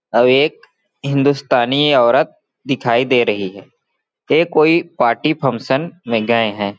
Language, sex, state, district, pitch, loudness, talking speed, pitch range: Hindi, male, Chhattisgarh, Balrampur, 130 Hz, -15 LUFS, 130 wpm, 115-145 Hz